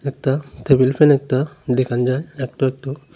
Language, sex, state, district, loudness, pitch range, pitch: Bengali, male, Tripura, Unakoti, -18 LUFS, 130-145 Hz, 135 Hz